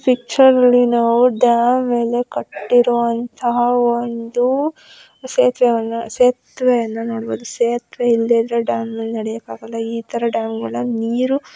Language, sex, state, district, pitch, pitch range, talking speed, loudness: Kannada, female, Karnataka, Belgaum, 240 Hz, 230-245 Hz, 110 wpm, -17 LUFS